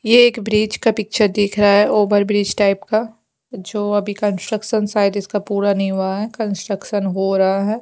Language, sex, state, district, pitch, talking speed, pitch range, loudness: Hindi, female, Haryana, Jhajjar, 205 Hz, 190 wpm, 200-215 Hz, -17 LUFS